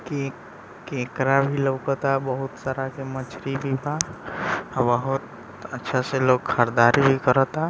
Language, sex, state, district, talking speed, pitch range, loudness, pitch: Bhojpuri, male, Bihar, East Champaran, 115 wpm, 130-135 Hz, -23 LUFS, 135 Hz